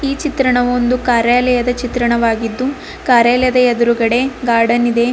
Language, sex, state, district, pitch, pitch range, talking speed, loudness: Kannada, female, Karnataka, Bidar, 245 Hz, 235-255 Hz, 105 wpm, -14 LUFS